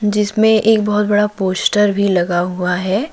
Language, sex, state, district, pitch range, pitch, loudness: Hindi, male, Jharkhand, Deoghar, 185-210 Hz, 205 Hz, -15 LUFS